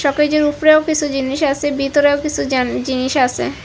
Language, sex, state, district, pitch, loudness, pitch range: Bengali, female, Assam, Hailakandi, 290 Hz, -16 LUFS, 270-300 Hz